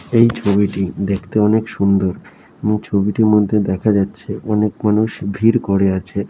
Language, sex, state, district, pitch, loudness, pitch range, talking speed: Bengali, male, West Bengal, Dakshin Dinajpur, 105 Hz, -17 LUFS, 100-110 Hz, 150 wpm